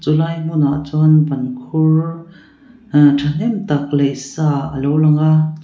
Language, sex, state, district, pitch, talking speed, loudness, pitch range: Mizo, female, Mizoram, Aizawl, 155 Hz, 160 wpm, -16 LUFS, 145-160 Hz